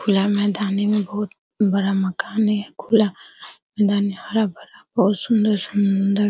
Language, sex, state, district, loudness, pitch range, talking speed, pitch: Hindi, female, Bihar, Araria, -20 LUFS, 200-210 Hz, 125 wpm, 205 Hz